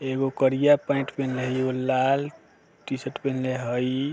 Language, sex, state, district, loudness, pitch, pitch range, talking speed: Bajjika, male, Bihar, Vaishali, -25 LUFS, 130 Hz, 130-135 Hz, 145 wpm